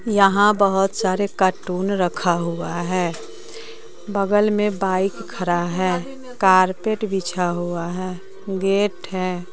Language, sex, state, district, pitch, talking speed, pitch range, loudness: Hindi, female, Bihar, West Champaran, 190 Hz, 115 wpm, 180-205 Hz, -20 LUFS